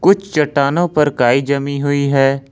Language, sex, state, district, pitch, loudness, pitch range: Hindi, male, Jharkhand, Ranchi, 140 Hz, -15 LUFS, 140-150 Hz